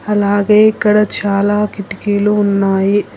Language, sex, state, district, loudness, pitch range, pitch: Telugu, female, Telangana, Hyderabad, -13 LUFS, 200-210 Hz, 205 Hz